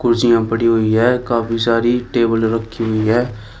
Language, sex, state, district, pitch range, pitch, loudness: Hindi, male, Uttar Pradesh, Shamli, 115-120 Hz, 115 Hz, -16 LUFS